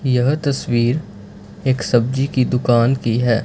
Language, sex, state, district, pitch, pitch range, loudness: Hindi, male, Punjab, Fazilka, 125 Hz, 120-135 Hz, -18 LUFS